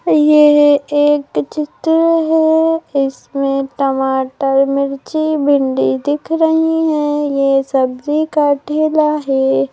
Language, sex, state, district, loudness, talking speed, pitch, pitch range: Hindi, female, Madhya Pradesh, Bhopal, -14 LUFS, 100 wpm, 290 Hz, 275-310 Hz